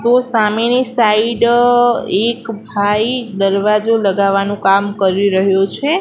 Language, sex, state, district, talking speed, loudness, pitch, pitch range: Gujarati, female, Gujarat, Gandhinagar, 110 wpm, -14 LUFS, 215 Hz, 200-240 Hz